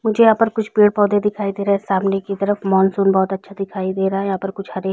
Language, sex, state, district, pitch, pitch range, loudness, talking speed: Hindi, female, Chhattisgarh, Raigarh, 195 Hz, 195-205 Hz, -18 LUFS, 305 wpm